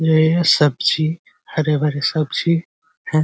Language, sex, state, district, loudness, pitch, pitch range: Hindi, male, Bihar, Muzaffarpur, -18 LUFS, 155 Hz, 150-160 Hz